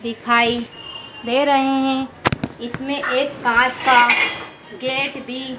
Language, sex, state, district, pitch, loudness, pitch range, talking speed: Hindi, female, Madhya Pradesh, Dhar, 260 Hz, -18 LUFS, 240-270 Hz, 105 wpm